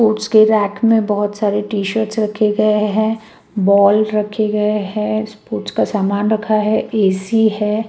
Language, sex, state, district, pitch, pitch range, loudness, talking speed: Hindi, female, Chhattisgarh, Raipur, 215 Hz, 205-220 Hz, -16 LUFS, 160 wpm